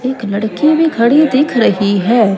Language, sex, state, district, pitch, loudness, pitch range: Hindi, female, Chandigarh, Chandigarh, 235 Hz, -12 LUFS, 210-295 Hz